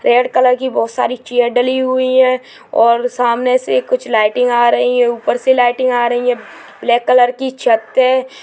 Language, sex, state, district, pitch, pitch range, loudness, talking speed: Hindi, female, Chhattisgarh, Bastar, 250 Hz, 240-255 Hz, -14 LUFS, 200 wpm